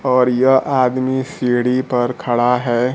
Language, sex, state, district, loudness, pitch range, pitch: Hindi, male, Bihar, Kaimur, -16 LUFS, 125-130 Hz, 125 Hz